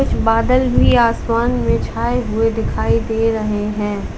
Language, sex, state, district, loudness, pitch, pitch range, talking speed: Hindi, female, Uttar Pradesh, Lalitpur, -17 LUFS, 225 Hz, 220-235 Hz, 145 wpm